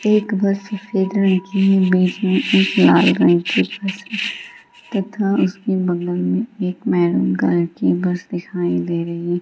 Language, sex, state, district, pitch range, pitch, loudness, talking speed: Hindi, female, Bihar, Gaya, 175-205 Hz, 190 Hz, -18 LUFS, 180 wpm